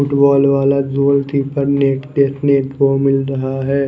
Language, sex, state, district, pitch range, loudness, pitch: Hindi, male, Odisha, Khordha, 135-140 Hz, -15 LUFS, 140 Hz